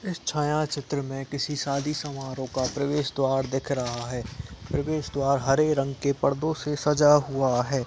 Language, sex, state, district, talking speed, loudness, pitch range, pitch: Hindi, male, Uttar Pradesh, Etah, 170 wpm, -26 LUFS, 135-150 Hz, 140 Hz